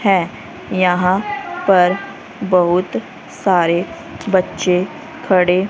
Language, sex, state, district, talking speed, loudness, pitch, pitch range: Hindi, female, Haryana, Rohtak, 75 wpm, -17 LUFS, 185 Hz, 180-200 Hz